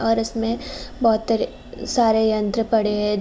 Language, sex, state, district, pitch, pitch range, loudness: Hindi, female, Uttar Pradesh, Jalaun, 225 Hz, 215-230 Hz, -21 LUFS